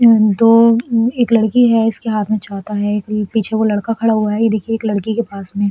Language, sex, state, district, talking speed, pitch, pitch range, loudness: Hindi, female, Uttar Pradesh, Etah, 265 wpm, 220 Hz, 210-230 Hz, -15 LUFS